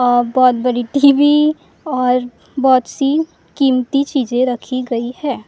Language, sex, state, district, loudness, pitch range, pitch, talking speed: Hindi, female, Maharashtra, Gondia, -15 LUFS, 245-280 Hz, 255 Hz, 130 wpm